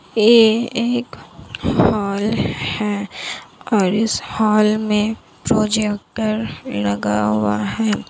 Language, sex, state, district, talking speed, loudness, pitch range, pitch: Hindi, female, Bihar, Kishanganj, 95 wpm, -18 LUFS, 200-220 Hz, 215 Hz